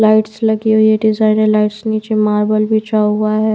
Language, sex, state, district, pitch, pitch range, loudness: Hindi, female, Bihar, Patna, 215 Hz, 215-220 Hz, -14 LUFS